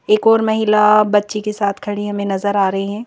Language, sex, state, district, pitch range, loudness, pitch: Hindi, female, Madhya Pradesh, Bhopal, 200-215 Hz, -16 LUFS, 210 Hz